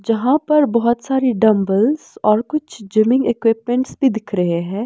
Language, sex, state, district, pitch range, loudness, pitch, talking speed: Hindi, female, Bihar, West Champaran, 215-260 Hz, -17 LUFS, 235 Hz, 160 wpm